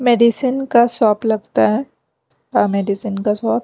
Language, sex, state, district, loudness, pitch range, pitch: Hindi, female, Himachal Pradesh, Shimla, -17 LUFS, 210-240 Hz, 225 Hz